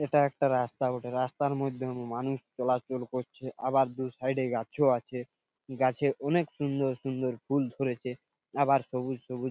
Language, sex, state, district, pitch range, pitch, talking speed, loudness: Bengali, male, West Bengal, Purulia, 125-135 Hz, 130 Hz, 150 wpm, -31 LUFS